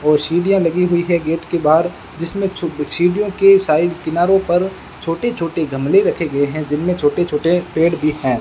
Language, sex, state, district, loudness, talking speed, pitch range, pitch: Hindi, male, Rajasthan, Bikaner, -16 LUFS, 185 wpm, 155-180 Hz, 170 Hz